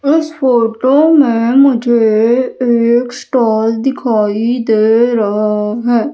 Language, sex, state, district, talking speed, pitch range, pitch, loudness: Hindi, female, Madhya Pradesh, Umaria, 100 wpm, 225-255 Hz, 235 Hz, -12 LUFS